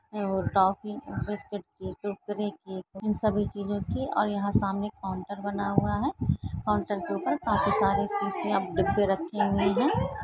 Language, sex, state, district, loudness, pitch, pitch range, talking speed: Hindi, female, Maharashtra, Dhule, -29 LUFS, 200 Hz, 195-205 Hz, 135 wpm